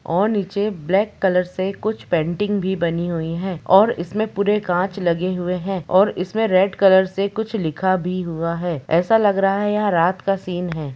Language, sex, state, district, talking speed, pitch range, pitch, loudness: Hindi, female, Uttar Pradesh, Jalaun, 205 wpm, 175-200 Hz, 190 Hz, -20 LUFS